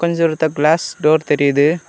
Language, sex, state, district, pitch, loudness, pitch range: Tamil, male, Tamil Nadu, Kanyakumari, 155 Hz, -15 LUFS, 145-165 Hz